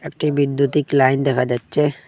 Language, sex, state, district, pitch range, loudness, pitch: Bengali, male, Assam, Hailakandi, 135-150 Hz, -18 LUFS, 140 Hz